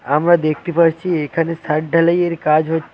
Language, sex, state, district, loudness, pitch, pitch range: Bengali, male, West Bengal, Cooch Behar, -16 LUFS, 165 Hz, 155-170 Hz